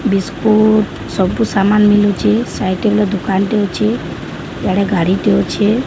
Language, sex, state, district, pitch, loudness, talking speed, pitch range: Odia, female, Odisha, Sambalpur, 205 Hz, -14 LUFS, 110 wpm, 195-215 Hz